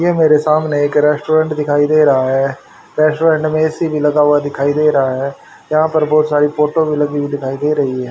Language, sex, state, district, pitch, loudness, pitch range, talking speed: Hindi, male, Haryana, Rohtak, 150 Hz, -14 LUFS, 145-155 Hz, 205 wpm